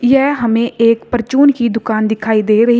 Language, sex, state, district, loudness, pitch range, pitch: Hindi, female, Uttar Pradesh, Shamli, -13 LUFS, 225-245 Hz, 230 Hz